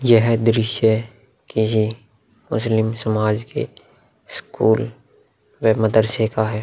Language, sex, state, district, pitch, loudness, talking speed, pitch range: Hindi, male, Bihar, Vaishali, 110 Hz, -19 LUFS, 100 wpm, 110-115 Hz